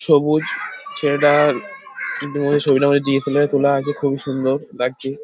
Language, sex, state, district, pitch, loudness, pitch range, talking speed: Bengali, male, West Bengal, Paschim Medinipur, 145 Hz, -18 LUFS, 140-150 Hz, 135 wpm